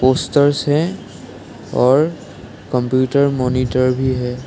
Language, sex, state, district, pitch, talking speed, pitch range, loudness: Hindi, male, Assam, Sonitpur, 130 Hz, 105 wpm, 130-145 Hz, -17 LUFS